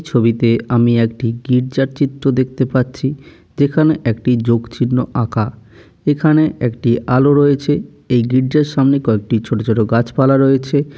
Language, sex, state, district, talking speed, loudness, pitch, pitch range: Bengali, male, West Bengal, Jalpaiguri, 155 wpm, -15 LUFS, 125 Hz, 115-140 Hz